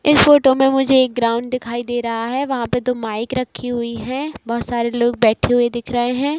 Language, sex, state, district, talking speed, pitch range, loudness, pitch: Hindi, female, Bihar, Saran, 235 wpm, 235-260 Hz, -17 LUFS, 245 Hz